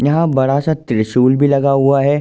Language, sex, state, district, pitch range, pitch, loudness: Hindi, male, Uttar Pradesh, Ghazipur, 130-145 Hz, 140 Hz, -14 LUFS